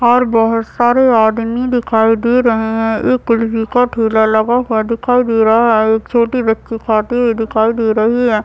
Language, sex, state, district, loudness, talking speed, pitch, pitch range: Hindi, female, Bihar, Madhepura, -13 LUFS, 190 wpm, 230 Hz, 220-240 Hz